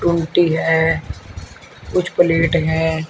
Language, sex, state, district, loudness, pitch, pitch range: Hindi, male, Uttar Pradesh, Shamli, -17 LUFS, 160 Hz, 155-170 Hz